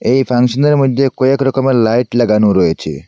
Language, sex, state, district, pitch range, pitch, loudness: Bengali, male, Assam, Hailakandi, 120-135 Hz, 130 Hz, -12 LUFS